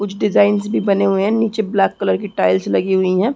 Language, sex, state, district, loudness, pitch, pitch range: Hindi, female, Chhattisgarh, Sarguja, -16 LUFS, 200 Hz, 185-210 Hz